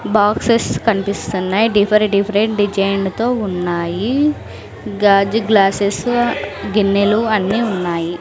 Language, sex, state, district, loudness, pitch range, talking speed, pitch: Telugu, female, Andhra Pradesh, Sri Satya Sai, -16 LUFS, 195-220 Hz, 80 wpm, 205 Hz